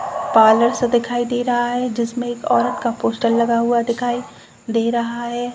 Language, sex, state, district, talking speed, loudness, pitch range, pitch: Hindi, female, Uttar Pradesh, Jalaun, 185 wpm, -18 LUFS, 235-245 Hz, 240 Hz